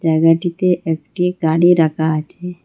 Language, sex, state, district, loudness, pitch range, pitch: Bengali, female, Assam, Hailakandi, -16 LUFS, 160-180 Hz, 165 Hz